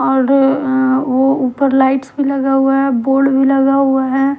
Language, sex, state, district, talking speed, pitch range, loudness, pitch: Hindi, female, Himachal Pradesh, Shimla, 190 wpm, 265-275 Hz, -13 LUFS, 270 Hz